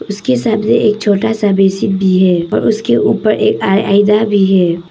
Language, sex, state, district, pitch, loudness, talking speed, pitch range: Hindi, female, Arunachal Pradesh, Papum Pare, 205 Hz, -12 LUFS, 185 wpm, 190-220 Hz